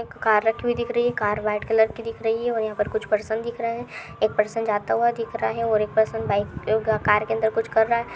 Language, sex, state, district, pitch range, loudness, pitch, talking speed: Hindi, female, Uttar Pradesh, Hamirpur, 215-230 Hz, -23 LUFS, 220 Hz, 285 wpm